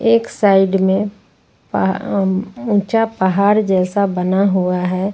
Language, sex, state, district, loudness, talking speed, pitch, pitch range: Hindi, female, Jharkhand, Ranchi, -16 LUFS, 130 wpm, 195 Hz, 190-205 Hz